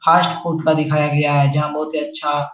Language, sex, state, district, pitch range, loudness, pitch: Hindi, male, Bihar, Jahanabad, 145-155 Hz, -18 LUFS, 150 Hz